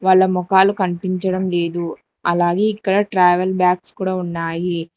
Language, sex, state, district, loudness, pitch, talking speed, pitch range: Telugu, female, Telangana, Hyderabad, -18 LUFS, 185 Hz, 120 wpm, 175-190 Hz